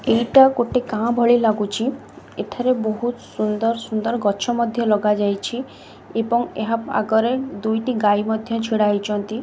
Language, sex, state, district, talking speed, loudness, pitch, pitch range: Odia, female, Odisha, Khordha, 125 wpm, -20 LUFS, 225 Hz, 215-240 Hz